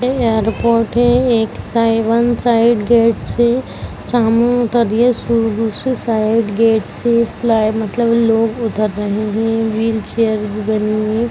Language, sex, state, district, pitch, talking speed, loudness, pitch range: Hindi, female, Bihar, Jahanabad, 230 Hz, 150 wpm, -15 LUFS, 220-235 Hz